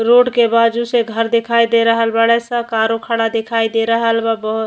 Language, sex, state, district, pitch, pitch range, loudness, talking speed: Bhojpuri, female, Uttar Pradesh, Ghazipur, 230 Hz, 225-235 Hz, -15 LUFS, 205 wpm